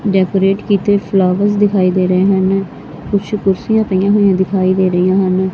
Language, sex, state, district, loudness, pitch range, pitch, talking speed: Punjabi, female, Punjab, Fazilka, -13 LUFS, 185-200 Hz, 195 Hz, 160 wpm